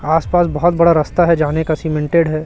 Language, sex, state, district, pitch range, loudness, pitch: Hindi, male, Chhattisgarh, Raipur, 155-170 Hz, -15 LUFS, 160 Hz